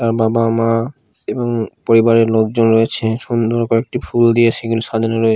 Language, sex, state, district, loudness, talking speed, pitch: Bengali, male, Odisha, Khordha, -15 LUFS, 155 wpm, 115 Hz